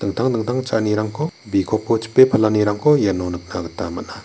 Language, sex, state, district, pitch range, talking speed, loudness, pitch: Garo, male, Meghalaya, West Garo Hills, 105-130 Hz, 125 wpm, -19 LUFS, 110 Hz